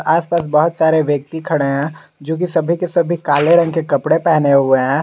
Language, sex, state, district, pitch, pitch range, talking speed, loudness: Hindi, male, Jharkhand, Garhwa, 160 Hz, 145-170 Hz, 215 wpm, -15 LUFS